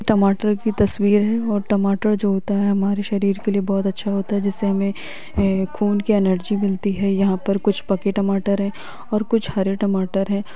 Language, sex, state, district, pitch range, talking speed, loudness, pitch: Bhojpuri, female, Bihar, Saran, 195-205 Hz, 200 wpm, -20 LUFS, 200 Hz